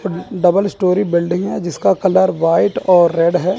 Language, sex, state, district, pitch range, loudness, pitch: Hindi, male, Chandigarh, Chandigarh, 170-190 Hz, -15 LUFS, 180 Hz